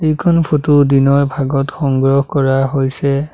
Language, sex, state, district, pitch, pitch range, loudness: Assamese, male, Assam, Sonitpur, 140 Hz, 135-150 Hz, -14 LUFS